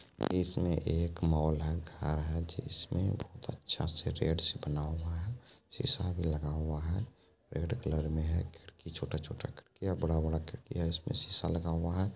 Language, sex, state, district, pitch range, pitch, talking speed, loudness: Maithili, male, Bihar, Supaul, 80-90 Hz, 85 Hz, 175 wpm, -34 LUFS